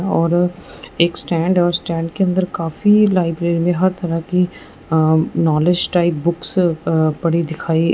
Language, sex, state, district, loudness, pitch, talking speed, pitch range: Hindi, male, Punjab, Fazilka, -17 LUFS, 170 Hz, 160 wpm, 165-180 Hz